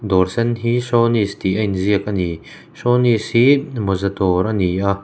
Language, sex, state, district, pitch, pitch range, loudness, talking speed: Mizo, male, Mizoram, Aizawl, 105 Hz, 95-115 Hz, -18 LUFS, 190 wpm